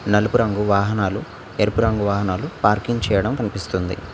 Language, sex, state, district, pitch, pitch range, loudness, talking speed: Telugu, male, Telangana, Mahabubabad, 105 Hz, 100-110 Hz, -20 LUFS, 130 wpm